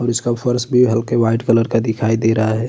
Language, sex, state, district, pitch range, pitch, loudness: Hindi, male, Uttar Pradesh, Budaun, 115-120 Hz, 115 Hz, -16 LUFS